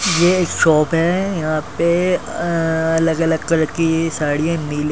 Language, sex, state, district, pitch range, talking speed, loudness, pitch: Hindi, male, Delhi, New Delhi, 155-170 Hz, 145 wpm, -17 LUFS, 165 Hz